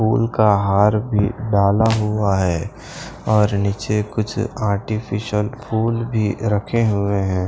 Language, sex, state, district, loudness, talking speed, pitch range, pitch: Hindi, male, Punjab, Pathankot, -19 LUFS, 130 wpm, 100-110 Hz, 105 Hz